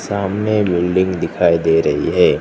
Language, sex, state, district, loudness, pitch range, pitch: Hindi, male, Gujarat, Gandhinagar, -16 LUFS, 85-100 Hz, 95 Hz